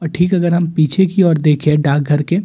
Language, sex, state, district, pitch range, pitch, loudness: Hindi, male, Delhi, New Delhi, 150-175 Hz, 165 Hz, -14 LUFS